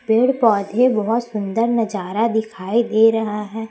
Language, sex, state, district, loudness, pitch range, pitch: Hindi, female, Chhattisgarh, Raipur, -18 LUFS, 210-230 Hz, 225 Hz